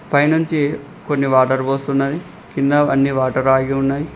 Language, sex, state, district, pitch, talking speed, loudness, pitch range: Telugu, male, Telangana, Mahabubabad, 140 Hz, 145 wpm, -17 LUFS, 135-145 Hz